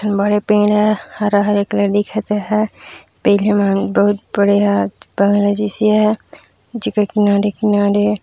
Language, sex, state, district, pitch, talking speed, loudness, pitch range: Chhattisgarhi, female, Chhattisgarh, Raigarh, 205 Hz, 140 wpm, -16 LUFS, 200-210 Hz